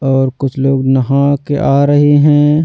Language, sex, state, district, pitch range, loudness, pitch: Hindi, male, Delhi, New Delhi, 135-145 Hz, -11 LUFS, 140 Hz